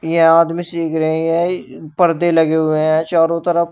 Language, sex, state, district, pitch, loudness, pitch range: Hindi, male, Uttar Pradesh, Shamli, 165 Hz, -15 LUFS, 160-170 Hz